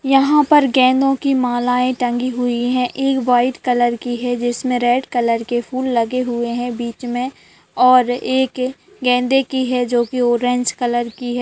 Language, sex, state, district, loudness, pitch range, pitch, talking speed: Hindi, female, Bihar, Purnia, -17 LUFS, 240-260 Hz, 245 Hz, 175 wpm